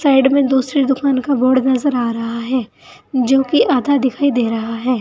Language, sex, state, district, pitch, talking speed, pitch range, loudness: Hindi, female, Uttar Pradesh, Saharanpur, 260 Hz, 205 wpm, 250-275 Hz, -16 LUFS